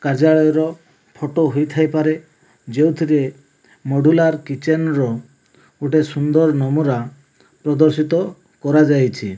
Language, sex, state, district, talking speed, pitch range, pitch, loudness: Odia, male, Odisha, Malkangiri, 85 wpm, 140-155 Hz, 150 Hz, -17 LUFS